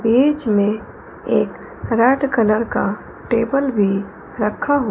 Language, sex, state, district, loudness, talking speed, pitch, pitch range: Hindi, female, Punjab, Fazilka, -18 LUFS, 120 wpm, 230 Hz, 215-270 Hz